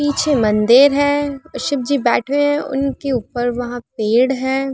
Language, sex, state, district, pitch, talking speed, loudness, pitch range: Hindi, female, Uttar Pradesh, Muzaffarnagar, 270 Hz, 150 wpm, -17 LUFS, 245-285 Hz